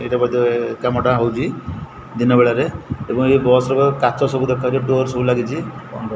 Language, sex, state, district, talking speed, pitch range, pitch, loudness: Odia, male, Odisha, Khordha, 165 wpm, 120-130 Hz, 125 Hz, -17 LUFS